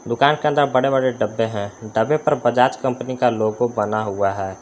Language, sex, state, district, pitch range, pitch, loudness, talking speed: Hindi, male, Jharkhand, Palamu, 110-130 Hz, 120 Hz, -20 LUFS, 210 wpm